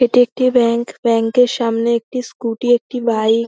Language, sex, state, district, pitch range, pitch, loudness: Bengali, female, West Bengal, North 24 Parganas, 230-245 Hz, 235 Hz, -16 LUFS